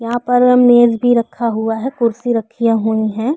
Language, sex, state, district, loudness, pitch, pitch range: Hindi, female, Chhattisgarh, Korba, -14 LUFS, 235 Hz, 225-245 Hz